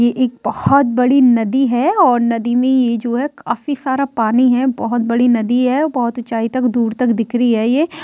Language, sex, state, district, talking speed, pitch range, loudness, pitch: Hindi, female, Bihar, Sitamarhi, 215 wpm, 235-260 Hz, -15 LUFS, 245 Hz